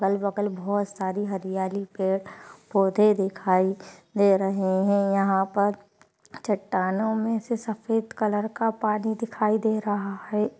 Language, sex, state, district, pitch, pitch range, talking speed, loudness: Hindi, female, Maharashtra, Nagpur, 200 Hz, 195-215 Hz, 135 wpm, -25 LUFS